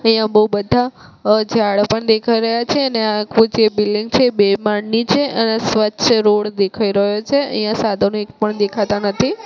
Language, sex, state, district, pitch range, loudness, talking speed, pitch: Gujarati, female, Gujarat, Gandhinagar, 210-230 Hz, -16 LUFS, 205 wpm, 215 Hz